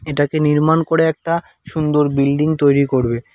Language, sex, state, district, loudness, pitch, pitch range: Bengali, male, West Bengal, Cooch Behar, -16 LUFS, 150 Hz, 140-160 Hz